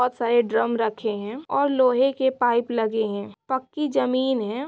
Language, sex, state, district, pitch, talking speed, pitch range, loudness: Maithili, female, Bihar, Supaul, 245 Hz, 180 wpm, 225-265 Hz, -23 LUFS